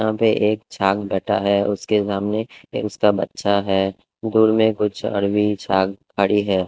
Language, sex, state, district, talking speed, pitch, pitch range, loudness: Hindi, male, Delhi, New Delhi, 170 wpm, 100 Hz, 100-105 Hz, -20 LUFS